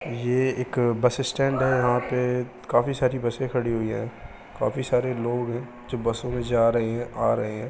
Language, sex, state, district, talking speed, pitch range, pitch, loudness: Hindi, male, Bihar, Bhagalpur, 200 wpm, 120-125 Hz, 125 Hz, -25 LUFS